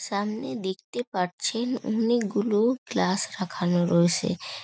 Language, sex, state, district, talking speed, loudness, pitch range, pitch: Bengali, female, West Bengal, North 24 Parganas, 105 wpm, -26 LUFS, 180-230 Hz, 205 Hz